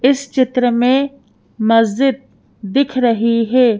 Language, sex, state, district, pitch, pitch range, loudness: Hindi, female, Madhya Pradesh, Bhopal, 250 Hz, 230-265 Hz, -15 LUFS